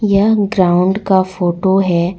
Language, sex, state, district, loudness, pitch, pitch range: Hindi, female, Jharkhand, Deoghar, -14 LUFS, 190 Hz, 180-200 Hz